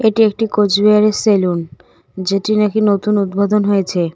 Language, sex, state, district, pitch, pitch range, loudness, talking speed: Bengali, female, West Bengal, Cooch Behar, 205 Hz, 195-210 Hz, -14 LUFS, 130 wpm